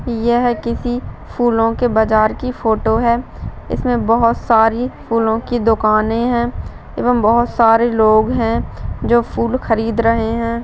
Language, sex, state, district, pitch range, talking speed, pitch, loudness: Hindi, female, Bihar, Madhepura, 225-240 Hz, 140 wpm, 230 Hz, -16 LUFS